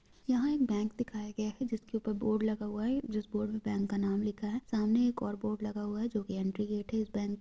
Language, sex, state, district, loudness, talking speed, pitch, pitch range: Hindi, female, Chhattisgarh, Kabirdham, -34 LUFS, 285 wpm, 215 Hz, 210-225 Hz